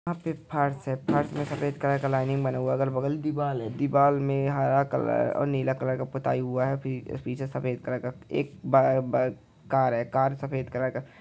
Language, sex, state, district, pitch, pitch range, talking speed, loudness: Hindi, male, Chhattisgarh, Jashpur, 135 Hz, 130-140 Hz, 215 wpm, -27 LUFS